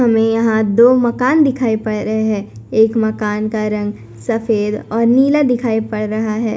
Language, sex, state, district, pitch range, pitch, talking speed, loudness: Hindi, female, Punjab, Kapurthala, 215-230 Hz, 220 Hz, 175 wpm, -15 LUFS